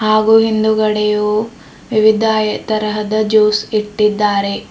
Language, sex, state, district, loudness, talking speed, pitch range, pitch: Kannada, female, Karnataka, Bidar, -14 LUFS, 75 wpm, 210-220 Hz, 215 Hz